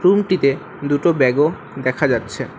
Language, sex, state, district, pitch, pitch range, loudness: Bengali, male, West Bengal, Alipurduar, 145 Hz, 130-180 Hz, -18 LUFS